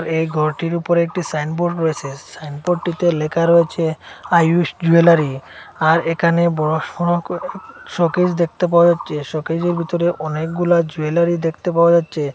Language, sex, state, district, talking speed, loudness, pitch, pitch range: Bengali, male, Assam, Hailakandi, 125 wpm, -17 LUFS, 170 Hz, 160-170 Hz